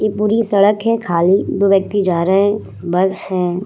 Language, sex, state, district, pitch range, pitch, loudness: Hindi, female, Uttar Pradesh, Muzaffarnagar, 185-210 Hz, 195 Hz, -15 LUFS